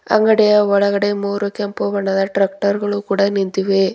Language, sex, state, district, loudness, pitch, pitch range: Kannada, female, Karnataka, Bidar, -17 LUFS, 200 Hz, 195-205 Hz